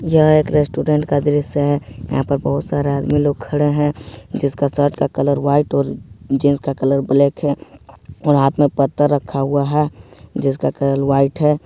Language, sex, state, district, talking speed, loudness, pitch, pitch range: Hindi, male, Jharkhand, Ranchi, 180 wpm, -17 LUFS, 140 Hz, 135-145 Hz